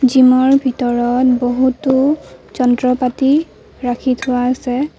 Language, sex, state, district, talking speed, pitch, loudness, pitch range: Assamese, female, Assam, Kamrup Metropolitan, 95 wpm, 255 Hz, -15 LUFS, 250-265 Hz